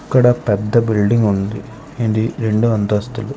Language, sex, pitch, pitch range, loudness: Telugu, male, 110 Hz, 105-120 Hz, -16 LUFS